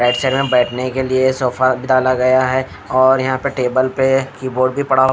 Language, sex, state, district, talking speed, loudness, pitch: Hindi, female, Odisha, Khordha, 200 wpm, -16 LUFS, 130 Hz